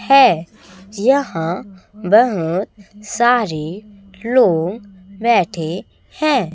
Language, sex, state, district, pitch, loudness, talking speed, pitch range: Hindi, female, Chhattisgarh, Raipur, 200 Hz, -17 LUFS, 65 wpm, 180-235 Hz